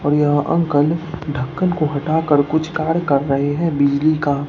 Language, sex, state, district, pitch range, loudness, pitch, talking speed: Hindi, male, Bihar, Katihar, 145-160 Hz, -18 LUFS, 150 Hz, 175 wpm